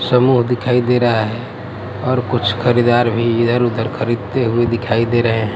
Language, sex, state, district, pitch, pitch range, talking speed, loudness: Hindi, male, Gujarat, Gandhinagar, 120 Hz, 115-125 Hz, 185 wpm, -16 LUFS